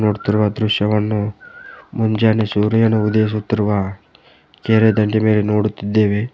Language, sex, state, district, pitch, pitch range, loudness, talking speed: Kannada, male, Karnataka, Koppal, 105 Hz, 105-110 Hz, -17 LUFS, 85 wpm